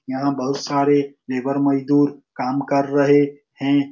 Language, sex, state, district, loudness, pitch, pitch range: Hindi, male, Uttar Pradesh, Muzaffarnagar, -20 LUFS, 140 Hz, 140-145 Hz